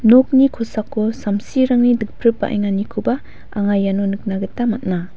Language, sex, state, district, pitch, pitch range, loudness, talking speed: Garo, female, Meghalaya, West Garo Hills, 215 Hz, 200-240 Hz, -18 LUFS, 105 wpm